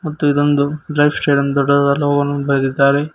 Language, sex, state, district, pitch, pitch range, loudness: Kannada, male, Karnataka, Koppal, 145 Hz, 140-145 Hz, -15 LUFS